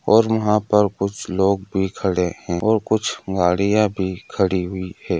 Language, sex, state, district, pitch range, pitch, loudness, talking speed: Hindi, male, Andhra Pradesh, Guntur, 95-105 Hz, 95 Hz, -20 LUFS, 160 wpm